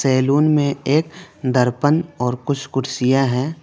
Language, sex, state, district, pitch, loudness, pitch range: Hindi, male, West Bengal, Alipurduar, 135 Hz, -19 LUFS, 130-150 Hz